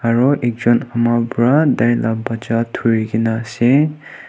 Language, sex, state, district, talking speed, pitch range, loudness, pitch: Nagamese, male, Nagaland, Kohima, 110 wpm, 115-125 Hz, -16 LUFS, 120 Hz